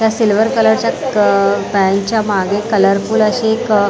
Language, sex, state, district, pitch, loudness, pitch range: Marathi, female, Maharashtra, Mumbai Suburban, 210 Hz, -14 LUFS, 195-220 Hz